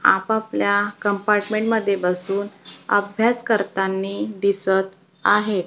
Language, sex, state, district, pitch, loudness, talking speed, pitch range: Marathi, female, Maharashtra, Gondia, 200 Hz, -20 LUFS, 75 wpm, 195-210 Hz